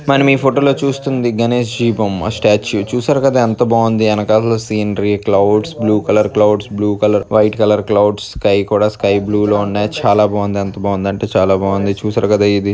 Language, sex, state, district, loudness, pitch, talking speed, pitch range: Telugu, male, Andhra Pradesh, Krishna, -14 LUFS, 105 Hz, 185 wpm, 100-115 Hz